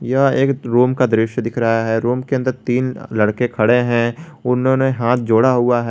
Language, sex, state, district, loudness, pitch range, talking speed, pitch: Hindi, male, Jharkhand, Garhwa, -17 LUFS, 115-130 Hz, 195 wpm, 125 Hz